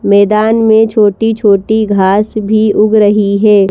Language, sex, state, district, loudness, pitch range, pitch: Hindi, female, Madhya Pradesh, Bhopal, -9 LUFS, 205-220 Hz, 210 Hz